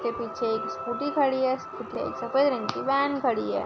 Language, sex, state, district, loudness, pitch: Hindi, female, Maharashtra, Sindhudurg, -27 LUFS, 235 Hz